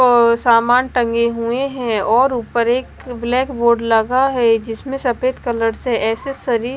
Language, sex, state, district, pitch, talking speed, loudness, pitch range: Hindi, female, Bihar, West Champaran, 240 Hz, 160 wpm, -17 LUFS, 230-255 Hz